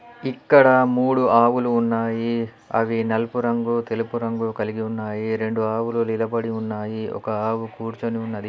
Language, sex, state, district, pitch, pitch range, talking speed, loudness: Telugu, male, Telangana, Adilabad, 115 Hz, 110-115 Hz, 135 wpm, -22 LUFS